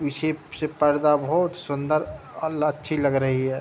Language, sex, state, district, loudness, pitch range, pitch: Hindi, male, Uttar Pradesh, Hamirpur, -24 LUFS, 140-155 Hz, 150 Hz